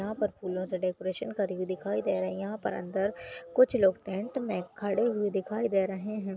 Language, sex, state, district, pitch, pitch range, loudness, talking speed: Hindi, female, Maharashtra, Aurangabad, 195 Hz, 185-210 Hz, -31 LUFS, 225 wpm